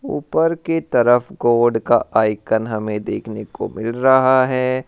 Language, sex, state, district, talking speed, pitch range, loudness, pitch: Hindi, male, Rajasthan, Churu, 145 wpm, 110-130 Hz, -18 LUFS, 120 Hz